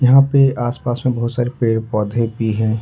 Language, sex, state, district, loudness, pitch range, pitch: Hindi, male, Jharkhand, Ranchi, -17 LUFS, 115-125 Hz, 120 Hz